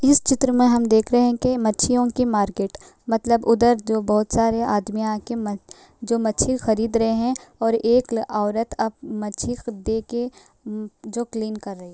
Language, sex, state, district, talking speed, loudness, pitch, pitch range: Hindi, female, Uttar Pradesh, Ghazipur, 195 wpm, -21 LUFS, 225 Hz, 215-240 Hz